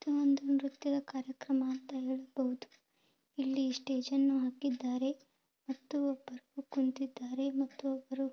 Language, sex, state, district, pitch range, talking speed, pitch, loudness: Kannada, female, Karnataka, Mysore, 260-275 Hz, 160 wpm, 270 Hz, -36 LUFS